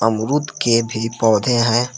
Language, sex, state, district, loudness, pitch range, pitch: Hindi, male, Jharkhand, Palamu, -17 LUFS, 110-120 Hz, 115 Hz